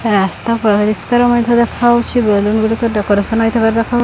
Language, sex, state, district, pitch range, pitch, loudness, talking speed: Odia, female, Odisha, Khordha, 210-235 Hz, 225 Hz, -13 LUFS, 165 wpm